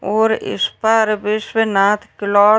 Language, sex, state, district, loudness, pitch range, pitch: Hindi, female, Uttar Pradesh, Deoria, -16 LUFS, 205-220 Hz, 215 Hz